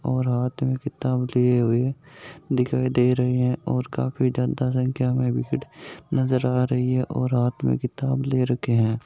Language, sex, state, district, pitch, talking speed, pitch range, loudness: Hindi, male, Rajasthan, Nagaur, 125 Hz, 170 wpm, 125-130 Hz, -23 LUFS